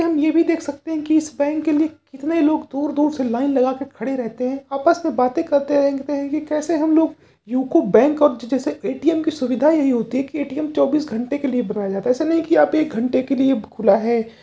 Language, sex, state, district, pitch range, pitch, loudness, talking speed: Hindi, male, Uttar Pradesh, Varanasi, 255-310 Hz, 285 Hz, -19 LUFS, 255 wpm